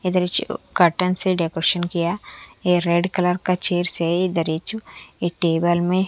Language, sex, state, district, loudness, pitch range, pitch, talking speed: Hindi, female, Haryana, Charkhi Dadri, -20 LUFS, 170-180 Hz, 175 Hz, 140 wpm